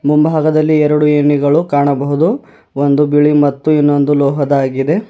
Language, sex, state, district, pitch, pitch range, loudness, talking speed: Kannada, male, Karnataka, Bidar, 145 Hz, 140-155 Hz, -12 LUFS, 105 wpm